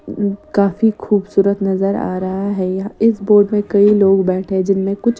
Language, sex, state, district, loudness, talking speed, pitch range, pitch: Hindi, female, Odisha, Sambalpur, -15 LUFS, 175 wpm, 195-205 Hz, 200 Hz